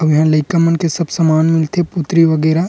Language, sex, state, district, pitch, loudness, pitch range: Chhattisgarhi, male, Chhattisgarh, Rajnandgaon, 165 Hz, -14 LUFS, 155-170 Hz